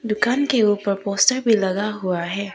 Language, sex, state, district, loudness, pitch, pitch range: Hindi, female, Arunachal Pradesh, Papum Pare, -20 LUFS, 205 Hz, 195-230 Hz